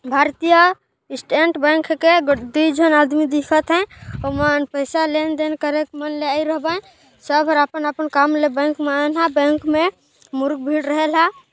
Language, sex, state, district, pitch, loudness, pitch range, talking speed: Chhattisgarhi, female, Chhattisgarh, Jashpur, 305 Hz, -18 LUFS, 290-320 Hz, 170 wpm